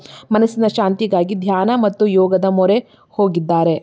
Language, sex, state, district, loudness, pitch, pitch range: Kannada, female, Karnataka, Belgaum, -16 LUFS, 195 Hz, 185-220 Hz